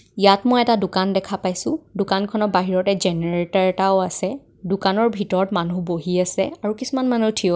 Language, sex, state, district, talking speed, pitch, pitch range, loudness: Assamese, female, Assam, Kamrup Metropolitan, 175 wpm, 195 Hz, 185-210 Hz, -20 LUFS